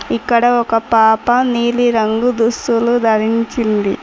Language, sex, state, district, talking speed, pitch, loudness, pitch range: Telugu, female, Telangana, Mahabubabad, 105 wpm, 230 Hz, -14 LUFS, 225-240 Hz